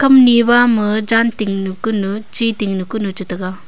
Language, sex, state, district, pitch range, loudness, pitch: Wancho, female, Arunachal Pradesh, Longding, 195-230 Hz, -15 LUFS, 215 Hz